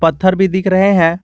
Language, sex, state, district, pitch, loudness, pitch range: Hindi, male, Jharkhand, Garhwa, 185 Hz, -13 LUFS, 165-190 Hz